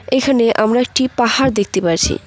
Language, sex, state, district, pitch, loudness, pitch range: Bengali, female, West Bengal, Cooch Behar, 240 Hz, -15 LUFS, 215-260 Hz